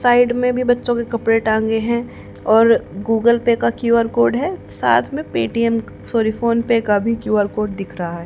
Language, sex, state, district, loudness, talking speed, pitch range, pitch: Hindi, female, Haryana, Jhajjar, -17 LUFS, 195 wpm, 215-235 Hz, 230 Hz